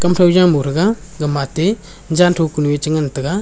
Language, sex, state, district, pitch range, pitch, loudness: Wancho, male, Arunachal Pradesh, Longding, 150-180 Hz, 165 Hz, -16 LUFS